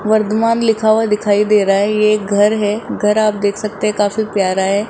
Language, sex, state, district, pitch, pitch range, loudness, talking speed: Hindi, male, Rajasthan, Jaipur, 210 Hz, 205-215 Hz, -15 LUFS, 235 wpm